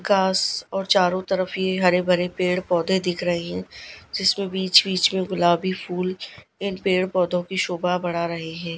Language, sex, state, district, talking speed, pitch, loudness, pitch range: Hindi, female, Gujarat, Gandhinagar, 170 wpm, 185 Hz, -22 LUFS, 175-190 Hz